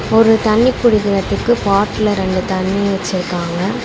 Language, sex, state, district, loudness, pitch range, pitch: Tamil, female, Tamil Nadu, Chennai, -15 LUFS, 190-220 Hz, 200 Hz